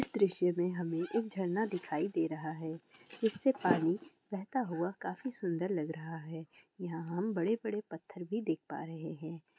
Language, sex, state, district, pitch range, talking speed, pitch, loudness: Hindi, female, Bihar, Kishanganj, 165-210 Hz, 180 wpm, 180 Hz, -36 LUFS